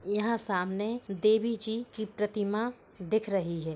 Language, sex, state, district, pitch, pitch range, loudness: Hindi, female, Uttar Pradesh, Hamirpur, 215 Hz, 195-225 Hz, -31 LUFS